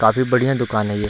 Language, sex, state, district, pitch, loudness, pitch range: Hindi, male, Bihar, Darbhanga, 110 Hz, -19 LUFS, 105-125 Hz